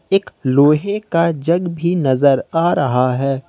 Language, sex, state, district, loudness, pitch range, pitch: Hindi, male, Jharkhand, Ranchi, -16 LUFS, 135-175 Hz, 160 Hz